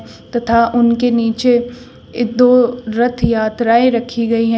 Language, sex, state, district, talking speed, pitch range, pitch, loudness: Hindi, female, Uttar Pradesh, Shamli, 130 wpm, 230-245 Hz, 235 Hz, -14 LUFS